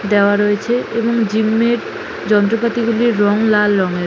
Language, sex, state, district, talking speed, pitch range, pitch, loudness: Bengali, female, West Bengal, Jhargram, 175 wpm, 205-235 Hz, 220 Hz, -15 LUFS